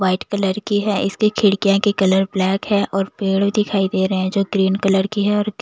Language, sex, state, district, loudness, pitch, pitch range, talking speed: Hindi, female, Bihar, Patna, -18 LUFS, 195 Hz, 190-205 Hz, 245 wpm